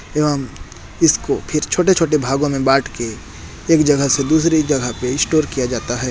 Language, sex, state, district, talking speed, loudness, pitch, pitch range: Hindi, male, Chhattisgarh, Korba, 165 wpm, -17 LUFS, 140 Hz, 130-155 Hz